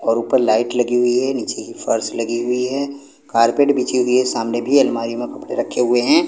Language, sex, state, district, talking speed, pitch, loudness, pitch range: Hindi, male, Punjab, Pathankot, 230 wpm, 125 Hz, -18 LUFS, 115-135 Hz